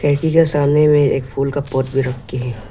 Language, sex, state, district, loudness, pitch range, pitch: Hindi, male, Arunachal Pradesh, Lower Dibang Valley, -16 LUFS, 130-145 Hz, 140 Hz